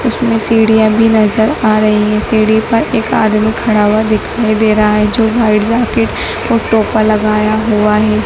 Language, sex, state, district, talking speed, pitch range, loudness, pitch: Hindi, female, Madhya Pradesh, Dhar, 180 wpm, 215-225 Hz, -11 LUFS, 220 Hz